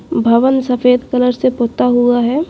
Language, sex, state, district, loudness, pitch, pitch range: Hindi, female, Delhi, New Delhi, -13 LUFS, 250 Hz, 245-255 Hz